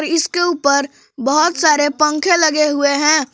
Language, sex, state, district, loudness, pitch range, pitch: Hindi, female, Jharkhand, Palamu, -15 LUFS, 285-320 Hz, 300 Hz